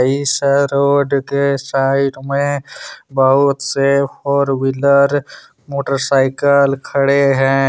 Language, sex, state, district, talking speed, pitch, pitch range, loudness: Hindi, male, Jharkhand, Deoghar, 95 wpm, 140 Hz, 135-140 Hz, -15 LUFS